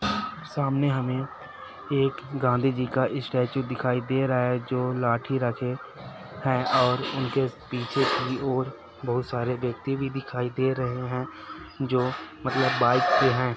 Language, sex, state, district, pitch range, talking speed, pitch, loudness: Hindi, male, Chhattisgarh, Raigarh, 125-135 Hz, 140 wpm, 130 Hz, -26 LUFS